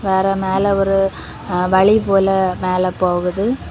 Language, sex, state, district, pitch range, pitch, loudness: Tamil, female, Tamil Nadu, Kanyakumari, 185-195 Hz, 190 Hz, -16 LUFS